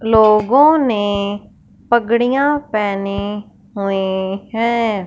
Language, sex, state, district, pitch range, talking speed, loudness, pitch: Hindi, male, Punjab, Fazilka, 200-235 Hz, 70 wpm, -16 LUFS, 215 Hz